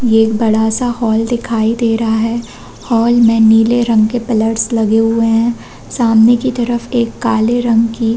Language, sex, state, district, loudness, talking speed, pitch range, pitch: Hindi, female, Chhattisgarh, Bastar, -13 LUFS, 175 wpm, 225-235 Hz, 230 Hz